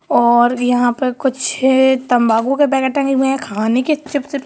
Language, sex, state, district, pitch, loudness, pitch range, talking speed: Hindi, female, Uttar Pradesh, Jalaun, 260 Hz, -15 LUFS, 245-270 Hz, 190 wpm